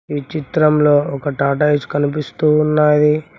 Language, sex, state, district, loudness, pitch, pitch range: Telugu, male, Telangana, Mahabubabad, -16 LUFS, 150 Hz, 145-150 Hz